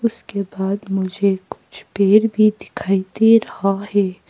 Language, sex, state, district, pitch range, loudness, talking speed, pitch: Hindi, female, Arunachal Pradesh, Papum Pare, 195-215 Hz, -18 LUFS, 140 wpm, 200 Hz